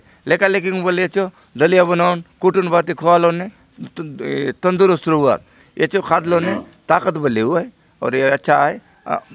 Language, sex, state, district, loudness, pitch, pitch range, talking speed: Halbi, male, Chhattisgarh, Bastar, -17 LUFS, 175 Hz, 160-185 Hz, 180 wpm